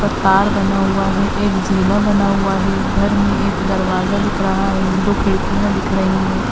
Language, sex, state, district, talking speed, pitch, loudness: Hindi, female, Uttar Pradesh, Hamirpur, 210 wpm, 195 Hz, -16 LUFS